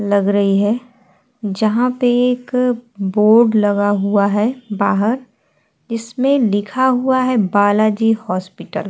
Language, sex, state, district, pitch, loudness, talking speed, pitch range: Hindi, female, Uttar Pradesh, Etah, 215 Hz, -16 LUFS, 120 wpm, 205-245 Hz